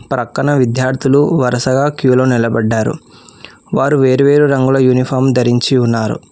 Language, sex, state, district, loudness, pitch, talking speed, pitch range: Telugu, male, Telangana, Hyderabad, -13 LUFS, 130 Hz, 105 wpm, 125-135 Hz